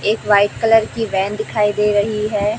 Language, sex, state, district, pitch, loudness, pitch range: Hindi, female, Chhattisgarh, Raipur, 210 Hz, -16 LUFS, 205-215 Hz